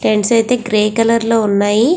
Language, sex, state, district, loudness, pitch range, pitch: Telugu, female, Andhra Pradesh, Visakhapatnam, -14 LUFS, 210-230 Hz, 225 Hz